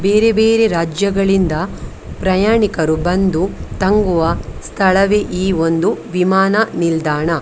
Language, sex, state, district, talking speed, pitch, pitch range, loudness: Kannada, female, Karnataka, Dakshina Kannada, 95 wpm, 190 Hz, 165-200 Hz, -15 LUFS